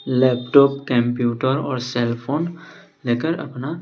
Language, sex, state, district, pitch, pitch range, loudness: Hindi, male, Bihar, West Champaran, 130 Hz, 120-145 Hz, -20 LUFS